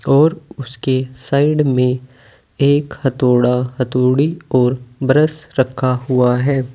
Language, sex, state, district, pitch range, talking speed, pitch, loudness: Hindi, male, Uttar Pradesh, Saharanpur, 125-140 Hz, 105 wpm, 130 Hz, -16 LUFS